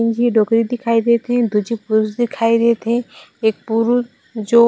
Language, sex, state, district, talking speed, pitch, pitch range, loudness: Chhattisgarhi, female, Chhattisgarh, Raigarh, 190 wpm, 230 Hz, 225-240 Hz, -17 LUFS